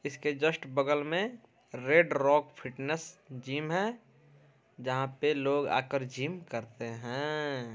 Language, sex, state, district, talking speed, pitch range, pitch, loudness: Hindi, male, Bihar, Saran, 130 wpm, 135-155 Hz, 145 Hz, -31 LUFS